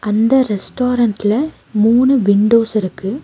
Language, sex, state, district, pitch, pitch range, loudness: Tamil, female, Tamil Nadu, Nilgiris, 220 Hz, 210-250 Hz, -15 LUFS